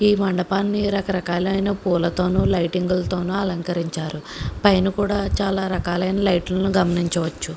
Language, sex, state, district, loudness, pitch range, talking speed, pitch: Telugu, female, Andhra Pradesh, Krishna, -21 LUFS, 175-195 Hz, 105 wpm, 185 Hz